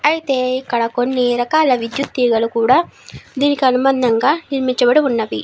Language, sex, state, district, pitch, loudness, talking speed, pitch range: Telugu, female, Andhra Pradesh, Srikakulam, 255 Hz, -16 LUFS, 120 wpm, 240-270 Hz